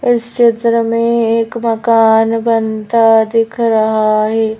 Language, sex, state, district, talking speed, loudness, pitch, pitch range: Hindi, female, Madhya Pradesh, Bhopal, 115 wpm, -12 LUFS, 230 Hz, 220-230 Hz